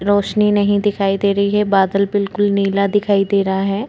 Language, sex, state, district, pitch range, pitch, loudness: Hindi, female, Chhattisgarh, Korba, 195-205 Hz, 200 Hz, -16 LUFS